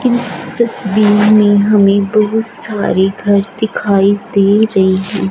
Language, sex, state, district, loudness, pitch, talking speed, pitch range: Hindi, male, Punjab, Fazilka, -12 LUFS, 205 Hz, 125 wpm, 195-215 Hz